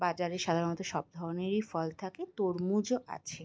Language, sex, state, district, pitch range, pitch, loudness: Bengali, female, West Bengal, Jalpaiguri, 170-195 Hz, 180 Hz, -34 LUFS